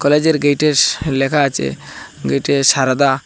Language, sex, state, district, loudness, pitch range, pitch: Bengali, male, Assam, Hailakandi, -15 LUFS, 130-145 Hz, 140 Hz